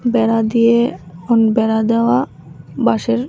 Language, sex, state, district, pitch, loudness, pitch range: Bengali, female, Tripura, West Tripura, 220 Hz, -15 LUFS, 150-230 Hz